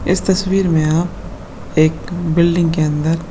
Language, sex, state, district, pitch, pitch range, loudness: Hindi, male, West Bengal, Kolkata, 170 Hz, 160-175 Hz, -16 LUFS